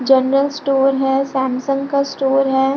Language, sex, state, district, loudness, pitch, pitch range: Hindi, female, Bihar, Lakhisarai, -17 LUFS, 270 Hz, 265-275 Hz